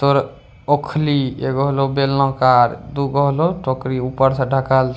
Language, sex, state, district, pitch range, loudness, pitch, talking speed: Angika, male, Bihar, Bhagalpur, 130-140 Hz, -18 LUFS, 135 Hz, 170 wpm